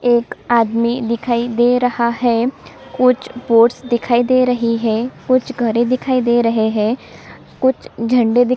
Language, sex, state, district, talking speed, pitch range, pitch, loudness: Hindi, female, Chhattisgarh, Sukma, 175 wpm, 235-250 Hz, 240 Hz, -16 LUFS